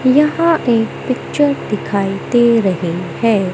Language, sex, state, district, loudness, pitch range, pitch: Hindi, male, Madhya Pradesh, Katni, -15 LUFS, 195-270 Hz, 230 Hz